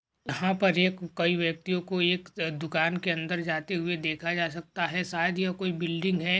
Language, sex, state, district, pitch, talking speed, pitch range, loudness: Hindi, male, Maharashtra, Dhule, 175 Hz, 195 wpm, 165-180 Hz, -28 LUFS